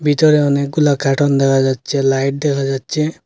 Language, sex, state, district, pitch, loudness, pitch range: Bengali, male, Assam, Hailakandi, 140 Hz, -15 LUFS, 135-145 Hz